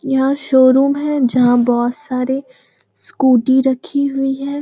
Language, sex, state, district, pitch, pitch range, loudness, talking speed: Hindi, female, Bihar, Jamui, 265 Hz, 255-280 Hz, -15 LUFS, 130 wpm